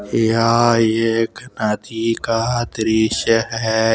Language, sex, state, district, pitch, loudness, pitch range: Hindi, male, Jharkhand, Deoghar, 115 Hz, -18 LUFS, 110-115 Hz